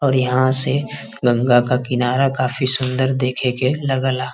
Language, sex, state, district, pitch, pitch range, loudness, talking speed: Bhojpuri, male, Uttar Pradesh, Varanasi, 130 Hz, 125-135 Hz, -17 LUFS, 150 wpm